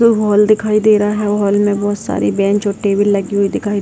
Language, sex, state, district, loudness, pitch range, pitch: Hindi, female, Bihar, Jahanabad, -14 LUFS, 200-210 Hz, 205 Hz